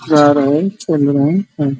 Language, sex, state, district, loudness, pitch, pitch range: Hindi, male, Bihar, East Champaran, -14 LUFS, 145 Hz, 140-160 Hz